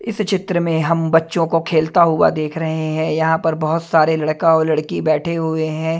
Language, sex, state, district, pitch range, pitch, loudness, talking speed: Hindi, male, Himachal Pradesh, Shimla, 160-165 Hz, 160 Hz, -17 LUFS, 210 wpm